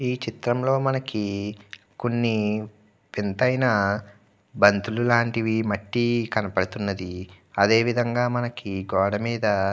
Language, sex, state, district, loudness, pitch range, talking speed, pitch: Telugu, male, Andhra Pradesh, Guntur, -24 LUFS, 100-120 Hz, 90 wpm, 105 Hz